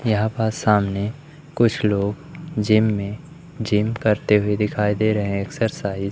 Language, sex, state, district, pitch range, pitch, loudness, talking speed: Hindi, male, Madhya Pradesh, Umaria, 105-120 Hz, 110 Hz, -21 LUFS, 155 wpm